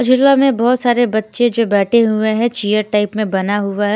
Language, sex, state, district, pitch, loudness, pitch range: Hindi, female, Himachal Pradesh, Shimla, 220 Hz, -15 LUFS, 210-240 Hz